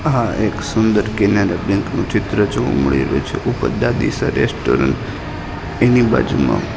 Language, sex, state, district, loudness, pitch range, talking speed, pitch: Gujarati, male, Gujarat, Gandhinagar, -17 LUFS, 85-110 Hz, 140 wpm, 105 Hz